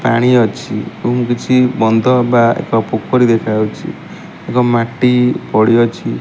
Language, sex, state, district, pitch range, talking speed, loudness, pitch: Odia, male, Odisha, Malkangiri, 110-125 Hz, 135 wpm, -13 LUFS, 120 Hz